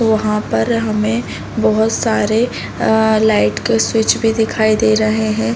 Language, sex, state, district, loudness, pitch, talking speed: Hindi, female, Uttar Pradesh, Deoria, -15 LUFS, 215 Hz, 150 wpm